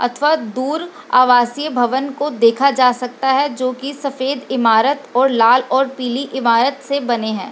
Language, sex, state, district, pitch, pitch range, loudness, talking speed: Hindi, female, Bihar, Lakhisarai, 260 Hz, 245-280 Hz, -16 LUFS, 170 wpm